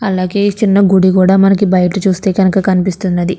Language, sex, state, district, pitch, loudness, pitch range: Telugu, female, Andhra Pradesh, Krishna, 190 Hz, -11 LUFS, 185-195 Hz